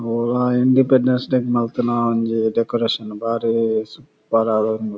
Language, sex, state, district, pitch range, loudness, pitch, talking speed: Tulu, male, Karnataka, Dakshina Kannada, 110-125 Hz, -19 LUFS, 115 Hz, 145 wpm